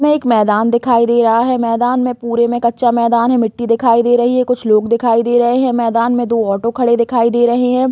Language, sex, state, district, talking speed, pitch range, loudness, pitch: Hindi, female, Chhattisgarh, Raigarh, 255 wpm, 230-245 Hz, -13 LUFS, 235 Hz